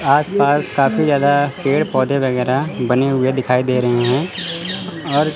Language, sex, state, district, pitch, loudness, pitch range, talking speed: Hindi, male, Chandigarh, Chandigarh, 140 Hz, -17 LUFS, 130-155 Hz, 145 wpm